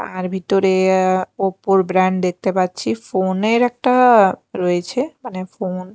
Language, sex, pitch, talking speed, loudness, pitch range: Bengali, female, 190 Hz, 140 wpm, -17 LUFS, 185-220 Hz